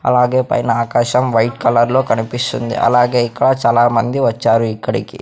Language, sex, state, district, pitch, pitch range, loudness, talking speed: Telugu, male, Andhra Pradesh, Sri Satya Sai, 120 Hz, 115-125 Hz, -15 LUFS, 140 wpm